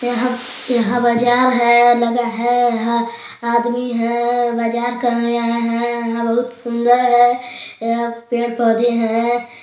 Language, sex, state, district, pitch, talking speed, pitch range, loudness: Hindi, male, Chhattisgarh, Balrampur, 240 Hz, 110 wpm, 235-245 Hz, -17 LUFS